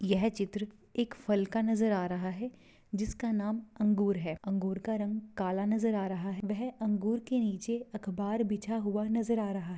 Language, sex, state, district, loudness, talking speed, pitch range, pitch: Hindi, female, Bihar, Darbhanga, -33 LUFS, 195 wpm, 195-225 Hz, 210 Hz